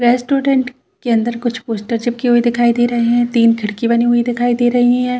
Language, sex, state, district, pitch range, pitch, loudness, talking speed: Hindi, female, Chhattisgarh, Bastar, 235-245 Hz, 240 Hz, -15 LUFS, 220 wpm